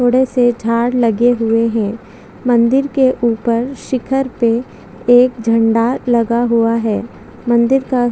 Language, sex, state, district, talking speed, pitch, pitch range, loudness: Hindi, female, Chhattisgarh, Bastar, 135 wpm, 235 Hz, 230-250 Hz, -14 LUFS